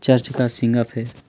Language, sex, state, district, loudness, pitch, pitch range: Hindi, male, Chhattisgarh, Kabirdham, -20 LUFS, 120 Hz, 120-130 Hz